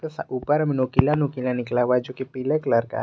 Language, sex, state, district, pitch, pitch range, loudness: Hindi, male, Jharkhand, Garhwa, 130 Hz, 125-145 Hz, -23 LUFS